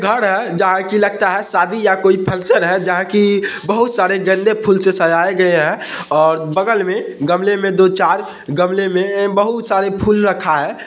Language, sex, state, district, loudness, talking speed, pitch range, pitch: Hindi, male, Bihar, Madhepura, -15 LUFS, 200 wpm, 185-205 Hz, 190 Hz